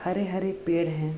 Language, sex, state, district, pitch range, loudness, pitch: Hindi, female, Bihar, Bhagalpur, 165-190 Hz, -28 LUFS, 180 Hz